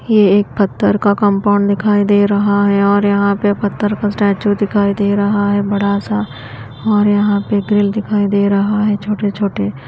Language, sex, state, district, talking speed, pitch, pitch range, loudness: Hindi, female, Haryana, Jhajjar, 180 wpm, 205 Hz, 200-205 Hz, -14 LUFS